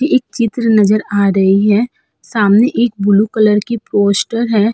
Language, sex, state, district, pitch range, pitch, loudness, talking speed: Hindi, female, Uttar Pradesh, Budaun, 205-235 Hz, 215 Hz, -13 LUFS, 165 wpm